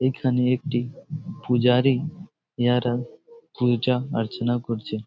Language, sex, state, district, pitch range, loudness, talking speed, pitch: Bengali, male, West Bengal, Jhargram, 120-150 Hz, -24 LUFS, 95 wpm, 125 Hz